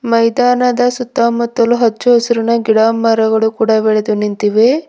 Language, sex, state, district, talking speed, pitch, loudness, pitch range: Kannada, female, Karnataka, Bidar, 110 wpm, 230 Hz, -13 LUFS, 220-240 Hz